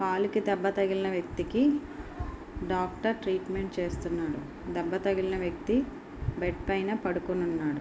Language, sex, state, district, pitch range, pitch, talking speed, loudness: Telugu, female, Andhra Pradesh, Guntur, 180-210 Hz, 190 Hz, 115 wpm, -31 LUFS